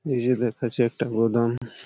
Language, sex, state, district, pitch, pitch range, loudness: Bengali, male, West Bengal, Malda, 120 Hz, 115-125 Hz, -24 LUFS